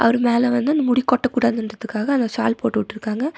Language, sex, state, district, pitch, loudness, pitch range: Tamil, female, Tamil Nadu, Nilgiris, 240 Hz, -20 LUFS, 230-255 Hz